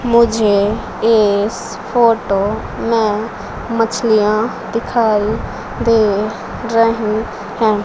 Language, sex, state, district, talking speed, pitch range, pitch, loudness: Hindi, female, Madhya Pradesh, Umaria, 70 wpm, 210-230 Hz, 220 Hz, -16 LUFS